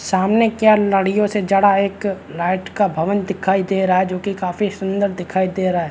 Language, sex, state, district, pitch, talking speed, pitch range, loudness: Hindi, male, Chhattisgarh, Rajnandgaon, 195 Hz, 205 wpm, 185-200 Hz, -18 LUFS